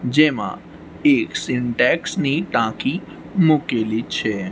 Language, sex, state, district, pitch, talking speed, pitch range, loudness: Gujarati, male, Gujarat, Gandhinagar, 125 Hz, 95 wpm, 110-160 Hz, -20 LUFS